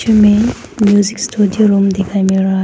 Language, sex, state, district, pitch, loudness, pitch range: Hindi, female, Arunachal Pradesh, Papum Pare, 205 Hz, -12 LUFS, 195-215 Hz